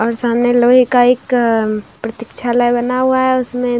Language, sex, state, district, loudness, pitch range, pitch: Hindi, female, Bihar, Saran, -14 LUFS, 235-250 Hz, 245 Hz